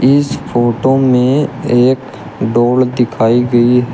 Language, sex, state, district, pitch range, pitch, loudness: Hindi, male, Uttar Pradesh, Shamli, 120-130 Hz, 125 Hz, -12 LUFS